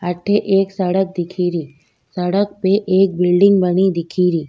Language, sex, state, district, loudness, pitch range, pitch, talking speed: Rajasthani, female, Rajasthan, Nagaur, -16 LUFS, 175-195 Hz, 180 Hz, 135 wpm